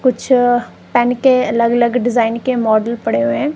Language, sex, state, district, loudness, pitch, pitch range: Hindi, female, Punjab, Kapurthala, -15 LUFS, 240 Hz, 230-255 Hz